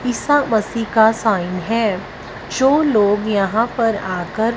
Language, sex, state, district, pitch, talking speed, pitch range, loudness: Hindi, female, Punjab, Fazilka, 220 Hz, 145 wpm, 205-235 Hz, -17 LUFS